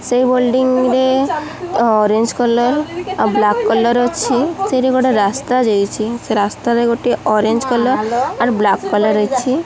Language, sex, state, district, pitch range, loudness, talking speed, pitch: Odia, female, Odisha, Khordha, 215-255 Hz, -15 LUFS, 150 wpm, 240 Hz